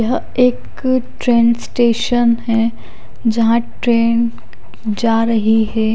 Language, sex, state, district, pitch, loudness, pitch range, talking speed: Hindi, female, Odisha, Khordha, 230 Hz, -16 LUFS, 225-240 Hz, 100 wpm